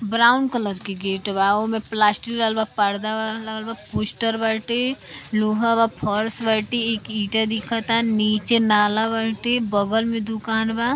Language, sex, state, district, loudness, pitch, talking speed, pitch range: Bhojpuri, female, Uttar Pradesh, Deoria, -21 LUFS, 220 Hz, 160 wpm, 215-230 Hz